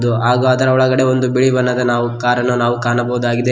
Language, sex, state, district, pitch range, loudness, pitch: Kannada, male, Karnataka, Koppal, 120-130 Hz, -15 LUFS, 125 Hz